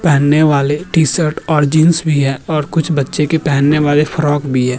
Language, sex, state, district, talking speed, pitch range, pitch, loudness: Hindi, male, Uttar Pradesh, Jyotiba Phule Nagar, 200 wpm, 145-160 Hz, 150 Hz, -13 LUFS